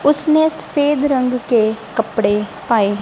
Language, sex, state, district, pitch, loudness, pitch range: Hindi, female, Punjab, Kapurthala, 240 Hz, -17 LUFS, 215-290 Hz